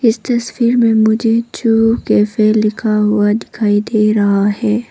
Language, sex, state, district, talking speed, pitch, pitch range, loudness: Hindi, female, Arunachal Pradesh, Papum Pare, 145 wpm, 220 Hz, 210-230 Hz, -13 LUFS